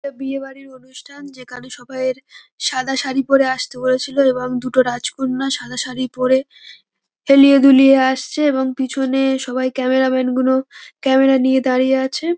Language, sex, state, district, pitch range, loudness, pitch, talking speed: Bengali, female, West Bengal, North 24 Parganas, 255-270 Hz, -16 LUFS, 265 Hz, 150 wpm